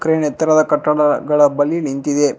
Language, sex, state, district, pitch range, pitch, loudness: Kannada, male, Karnataka, Bangalore, 145-155 Hz, 150 Hz, -15 LUFS